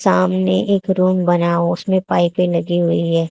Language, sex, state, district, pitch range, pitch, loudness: Hindi, female, Haryana, Charkhi Dadri, 170-185 Hz, 180 Hz, -16 LUFS